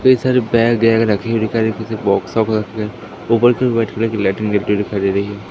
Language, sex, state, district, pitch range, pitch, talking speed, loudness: Hindi, male, Madhya Pradesh, Katni, 105-115 Hz, 110 Hz, 75 wpm, -16 LUFS